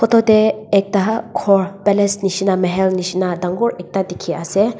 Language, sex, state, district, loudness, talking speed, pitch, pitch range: Nagamese, female, Nagaland, Dimapur, -17 LUFS, 140 wpm, 195 Hz, 185-215 Hz